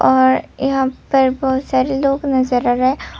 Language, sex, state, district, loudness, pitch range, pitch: Hindi, female, Tripura, Unakoti, -16 LUFS, 250-270 Hz, 260 Hz